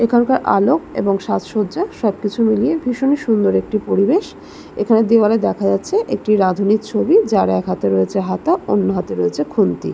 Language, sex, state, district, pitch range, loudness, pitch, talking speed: Bengali, female, West Bengal, Jalpaiguri, 185-240 Hz, -17 LUFS, 210 Hz, 155 wpm